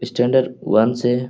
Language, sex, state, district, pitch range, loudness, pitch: Hindi, male, Bihar, Jahanabad, 120-125 Hz, -18 LUFS, 125 Hz